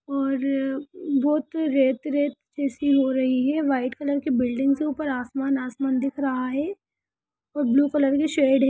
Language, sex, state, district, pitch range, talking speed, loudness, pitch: Hindi, female, Bihar, Sitamarhi, 270-290 Hz, 180 wpm, -24 LUFS, 275 Hz